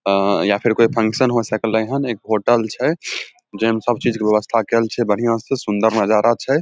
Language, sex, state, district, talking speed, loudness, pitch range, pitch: Maithili, male, Bihar, Samastipur, 215 wpm, -18 LUFS, 105-120 Hz, 110 Hz